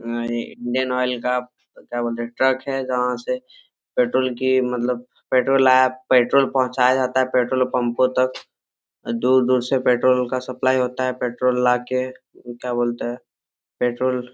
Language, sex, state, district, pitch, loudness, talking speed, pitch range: Hindi, male, Jharkhand, Jamtara, 125 Hz, -21 LUFS, 155 wpm, 125-130 Hz